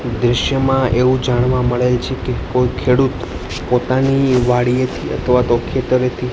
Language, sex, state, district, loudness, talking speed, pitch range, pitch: Gujarati, male, Gujarat, Gandhinagar, -16 LUFS, 140 wpm, 125-130 Hz, 125 Hz